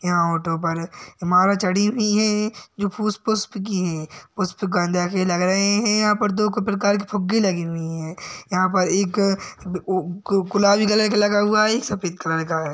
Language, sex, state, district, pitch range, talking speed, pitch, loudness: Hindi, male, Uttar Pradesh, Jalaun, 175-210 Hz, 195 wpm, 195 Hz, -21 LUFS